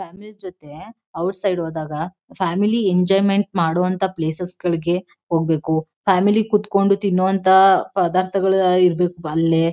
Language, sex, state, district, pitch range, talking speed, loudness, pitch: Kannada, female, Karnataka, Mysore, 165-195 Hz, 100 wpm, -19 LUFS, 185 Hz